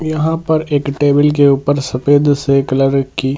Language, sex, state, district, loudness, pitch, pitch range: Hindi, male, Bihar, Purnia, -13 LUFS, 145 Hz, 135-145 Hz